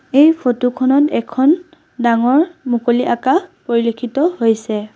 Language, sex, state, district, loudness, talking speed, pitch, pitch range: Assamese, female, Assam, Sonitpur, -15 LUFS, 110 wpm, 255 Hz, 235-305 Hz